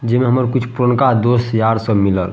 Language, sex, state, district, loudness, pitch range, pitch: Maithili, male, Bihar, Madhepura, -15 LUFS, 110-125 Hz, 120 Hz